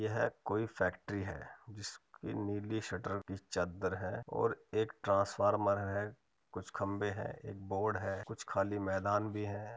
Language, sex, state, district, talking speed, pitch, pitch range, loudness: Hindi, male, Uttar Pradesh, Muzaffarnagar, 155 wpm, 100 Hz, 95-105 Hz, -37 LUFS